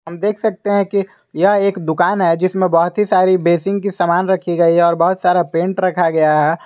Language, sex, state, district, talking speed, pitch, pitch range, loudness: Hindi, male, Jharkhand, Garhwa, 235 wpm, 180 Hz, 170-195 Hz, -15 LUFS